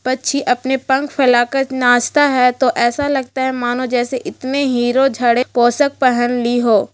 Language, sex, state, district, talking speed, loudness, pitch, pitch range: Hindi, female, Bihar, Gaya, 180 wpm, -15 LUFS, 255 Hz, 245-270 Hz